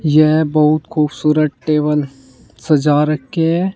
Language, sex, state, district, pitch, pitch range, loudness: Hindi, male, Uttar Pradesh, Saharanpur, 150 Hz, 150-155 Hz, -15 LUFS